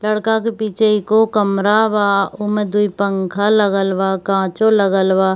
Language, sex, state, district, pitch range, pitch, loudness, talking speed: Hindi, female, Bihar, Kishanganj, 195-215 Hz, 205 Hz, -16 LUFS, 170 wpm